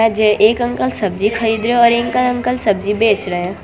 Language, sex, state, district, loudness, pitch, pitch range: Hindi, female, Gujarat, Valsad, -15 LUFS, 220 Hz, 205-235 Hz